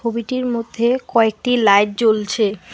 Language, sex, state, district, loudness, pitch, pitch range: Bengali, female, West Bengal, Alipurduar, -17 LUFS, 230 Hz, 215-240 Hz